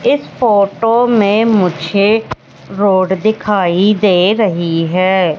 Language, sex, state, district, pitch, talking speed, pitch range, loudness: Hindi, female, Madhya Pradesh, Katni, 200 Hz, 100 wpm, 185-215 Hz, -12 LUFS